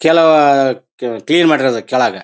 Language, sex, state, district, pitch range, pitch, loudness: Kannada, male, Karnataka, Bellary, 125-160 Hz, 140 Hz, -12 LUFS